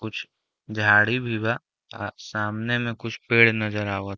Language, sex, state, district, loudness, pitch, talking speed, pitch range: Bhojpuri, male, Uttar Pradesh, Deoria, -22 LUFS, 110 Hz, 170 wpm, 105-115 Hz